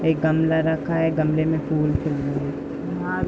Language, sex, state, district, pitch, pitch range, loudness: Hindi, female, Uttar Pradesh, Budaun, 155 Hz, 140-160 Hz, -22 LUFS